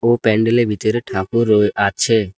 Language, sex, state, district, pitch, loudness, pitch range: Bengali, male, West Bengal, Alipurduar, 110 Hz, -16 LUFS, 105-115 Hz